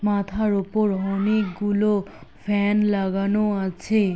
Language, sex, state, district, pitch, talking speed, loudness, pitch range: Bengali, male, West Bengal, Jhargram, 205 Hz, 85 wpm, -22 LUFS, 195-210 Hz